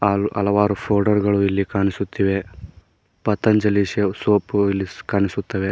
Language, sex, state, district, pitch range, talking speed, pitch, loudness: Kannada, male, Karnataka, Koppal, 100-105 Hz, 115 wpm, 100 Hz, -20 LUFS